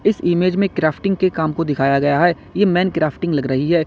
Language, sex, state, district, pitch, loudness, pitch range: Hindi, male, Uttar Pradesh, Lalitpur, 170 Hz, -17 LUFS, 155-185 Hz